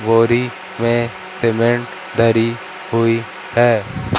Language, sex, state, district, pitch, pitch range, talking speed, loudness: Hindi, male, Madhya Pradesh, Katni, 115 Hz, 115-120 Hz, 85 wpm, -17 LUFS